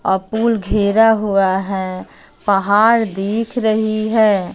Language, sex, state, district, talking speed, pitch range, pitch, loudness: Hindi, female, Bihar, West Champaran, 120 wpm, 195-220 Hz, 210 Hz, -16 LUFS